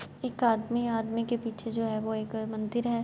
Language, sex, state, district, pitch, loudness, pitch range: Urdu, female, Andhra Pradesh, Anantapur, 230 Hz, -31 LUFS, 220-235 Hz